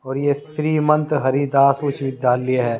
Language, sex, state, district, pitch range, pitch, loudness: Hindi, male, Haryana, Jhajjar, 130-150 Hz, 140 Hz, -19 LUFS